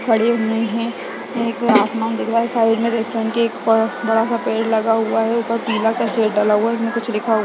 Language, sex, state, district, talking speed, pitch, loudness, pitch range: Hindi, female, Uttarakhand, Uttarkashi, 235 wpm, 225 Hz, -18 LUFS, 225-230 Hz